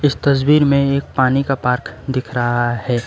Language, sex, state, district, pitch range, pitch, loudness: Hindi, male, West Bengal, Alipurduar, 125-140 Hz, 135 Hz, -17 LUFS